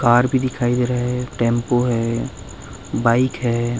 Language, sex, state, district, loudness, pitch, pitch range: Hindi, male, Chhattisgarh, Rajnandgaon, -19 LUFS, 120 Hz, 120-125 Hz